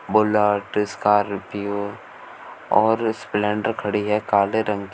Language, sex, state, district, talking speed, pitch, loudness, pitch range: Hindi, male, Uttar Pradesh, Shamli, 110 wpm, 105 Hz, -21 LUFS, 100-105 Hz